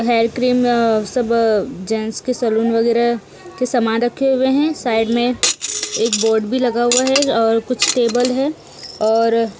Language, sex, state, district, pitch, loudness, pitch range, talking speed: Hindi, female, Bihar, Kaimur, 235 Hz, -16 LUFS, 225-250 Hz, 150 wpm